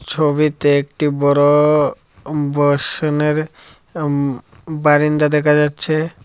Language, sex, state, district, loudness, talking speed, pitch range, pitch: Bengali, male, Tripura, Dhalai, -16 LUFS, 85 wpm, 145-150 Hz, 150 Hz